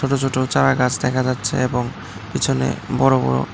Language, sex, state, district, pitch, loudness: Bengali, male, Tripura, West Tripura, 125 Hz, -19 LUFS